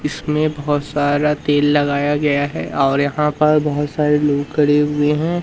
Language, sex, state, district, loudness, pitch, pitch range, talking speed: Hindi, male, Madhya Pradesh, Umaria, -17 LUFS, 150 Hz, 145-150 Hz, 175 wpm